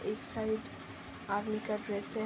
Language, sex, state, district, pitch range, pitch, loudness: Hindi, female, Uttar Pradesh, Ghazipur, 210-220 Hz, 215 Hz, -36 LUFS